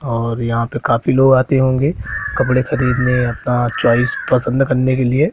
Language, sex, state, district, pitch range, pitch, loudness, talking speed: Hindi, male, Madhya Pradesh, Katni, 120-130 Hz, 130 Hz, -16 LUFS, 170 wpm